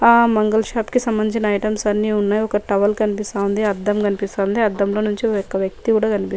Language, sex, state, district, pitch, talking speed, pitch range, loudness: Telugu, female, Telangana, Nalgonda, 210 Hz, 200 wpm, 200-220 Hz, -19 LUFS